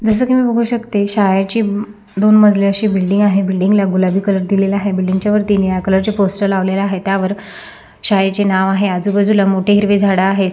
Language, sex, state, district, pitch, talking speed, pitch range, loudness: Marathi, female, Maharashtra, Sindhudurg, 200 Hz, 195 wpm, 195-205 Hz, -14 LUFS